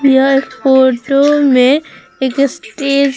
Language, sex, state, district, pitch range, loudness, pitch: Hindi, female, Bihar, Vaishali, 260-280 Hz, -12 LUFS, 270 Hz